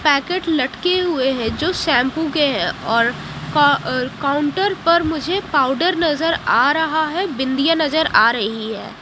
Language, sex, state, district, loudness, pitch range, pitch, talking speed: Hindi, female, Haryana, Jhajjar, -18 LUFS, 265-335 Hz, 305 Hz, 145 wpm